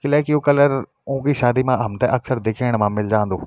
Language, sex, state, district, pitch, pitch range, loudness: Garhwali, male, Uttarakhand, Tehri Garhwal, 125 Hz, 110-140 Hz, -19 LUFS